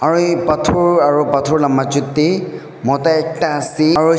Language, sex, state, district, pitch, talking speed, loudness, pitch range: Nagamese, male, Nagaland, Dimapur, 155 Hz, 130 wpm, -15 LUFS, 145-165 Hz